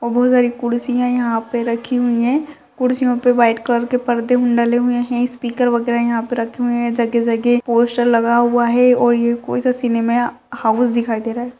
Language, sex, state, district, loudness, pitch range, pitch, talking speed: Hindi, female, Rajasthan, Churu, -17 LUFS, 235-245 Hz, 240 Hz, 205 wpm